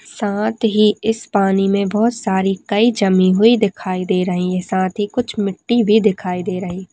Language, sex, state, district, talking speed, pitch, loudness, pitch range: Hindi, female, Chhattisgarh, Balrampur, 190 wpm, 200 Hz, -17 LUFS, 185-215 Hz